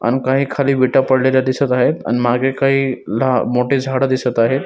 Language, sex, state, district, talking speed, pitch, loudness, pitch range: Marathi, male, Maharashtra, Dhule, 195 wpm, 130 Hz, -16 LUFS, 125-135 Hz